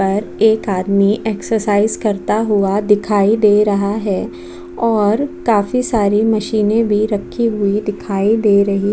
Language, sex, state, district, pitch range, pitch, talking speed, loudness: Hindi, female, Chhattisgarh, Bastar, 200-220 Hz, 210 Hz, 140 wpm, -15 LUFS